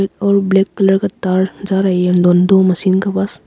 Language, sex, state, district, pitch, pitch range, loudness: Hindi, male, Arunachal Pradesh, Longding, 195 Hz, 185-195 Hz, -14 LUFS